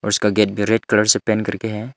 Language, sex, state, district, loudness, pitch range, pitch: Hindi, male, Arunachal Pradesh, Longding, -18 LUFS, 105-110 Hz, 105 Hz